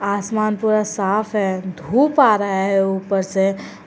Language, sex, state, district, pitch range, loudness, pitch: Hindi, female, Jharkhand, Garhwa, 190-215 Hz, -18 LUFS, 200 Hz